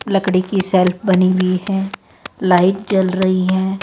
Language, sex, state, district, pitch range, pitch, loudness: Hindi, female, Rajasthan, Jaipur, 185-195 Hz, 185 Hz, -16 LUFS